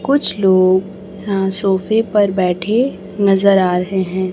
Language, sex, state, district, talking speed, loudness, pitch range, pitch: Hindi, male, Chhattisgarh, Raipur, 140 wpm, -15 LUFS, 185-205 Hz, 195 Hz